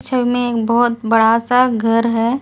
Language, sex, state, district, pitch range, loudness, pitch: Hindi, female, Delhi, New Delhi, 230-245 Hz, -15 LUFS, 235 Hz